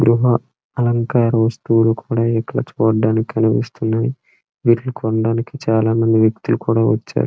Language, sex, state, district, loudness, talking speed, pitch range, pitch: Telugu, male, Andhra Pradesh, Srikakulam, -17 LUFS, 115 wpm, 110-120 Hz, 115 Hz